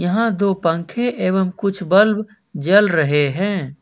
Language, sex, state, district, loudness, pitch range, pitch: Hindi, male, Jharkhand, Ranchi, -17 LUFS, 170-210 Hz, 195 Hz